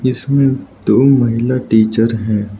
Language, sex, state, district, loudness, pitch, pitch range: Hindi, male, Arunachal Pradesh, Lower Dibang Valley, -14 LUFS, 120 Hz, 110-130 Hz